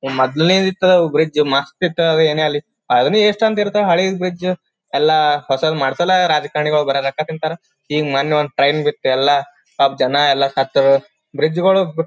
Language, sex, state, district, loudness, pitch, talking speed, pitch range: Kannada, male, Karnataka, Gulbarga, -16 LUFS, 155 Hz, 165 wpm, 140-180 Hz